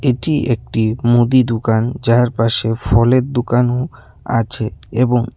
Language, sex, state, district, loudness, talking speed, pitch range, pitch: Bengali, male, Tripura, West Tripura, -16 LUFS, 100 wpm, 115-125 Hz, 120 Hz